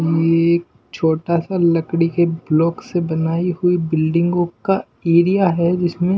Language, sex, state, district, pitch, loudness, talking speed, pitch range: Hindi, male, Punjab, Pathankot, 170 Hz, -18 LUFS, 125 wpm, 165-175 Hz